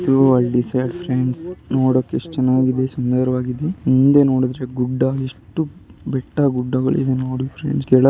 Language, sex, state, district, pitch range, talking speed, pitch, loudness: Kannada, male, Karnataka, Shimoga, 130-135 Hz, 135 wpm, 130 Hz, -19 LUFS